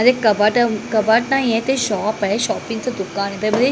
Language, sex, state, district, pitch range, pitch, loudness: Marathi, female, Maharashtra, Mumbai Suburban, 210-240 Hz, 220 Hz, -18 LUFS